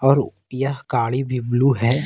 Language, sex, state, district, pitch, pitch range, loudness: Hindi, male, Jharkhand, Ranchi, 130 Hz, 120-135 Hz, -21 LUFS